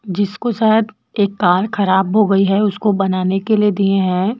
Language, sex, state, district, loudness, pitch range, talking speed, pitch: Hindi, female, Chhattisgarh, Raipur, -16 LUFS, 190-215 Hz, 190 wpm, 200 Hz